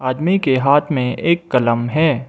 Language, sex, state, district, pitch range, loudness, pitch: Hindi, male, Mizoram, Aizawl, 125-160 Hz, -16 LUFS, 135 Hz